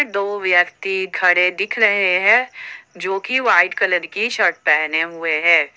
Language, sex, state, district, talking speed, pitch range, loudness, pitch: Hindi, female, Jharkhand, Ranchi, 155 wpm, 175-220 Hz, -16 LUFS, 185 Hz